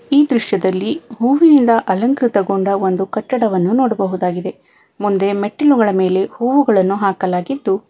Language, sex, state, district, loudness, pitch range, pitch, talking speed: Kannada, female, Karnataka, Bangalore, -15 LUFS, 190-250 Hz, 205 Hz, 90 wpm